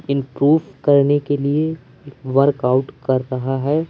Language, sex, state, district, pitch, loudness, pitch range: Hindi, male, Madhya Pradesh, Umaria, 140 Hz, -18 LUFS, 130-145 Hz